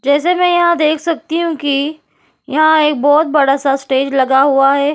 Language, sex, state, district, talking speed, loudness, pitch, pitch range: Hindi, female, Uttar Pradesh, Jyotiba Phule Nagar, 180 wpm, -13 LUFS, 290 Hz, 275-315 Hz